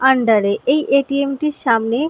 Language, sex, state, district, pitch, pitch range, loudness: Bengali, female, West Bengal, North 24 Parganas, 265 Hz, 230-280 Hz, -17 LUFS